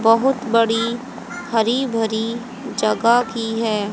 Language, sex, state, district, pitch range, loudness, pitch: Hindi, female, Haryana, Jhajjar, 225-240 Hz, -19 LUFS, 230 Hz